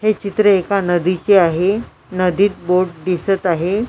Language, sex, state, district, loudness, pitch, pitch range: Marathi, female, Maharashtra, Washim, -16 LUFS, 185 Hz, 180-200 Hz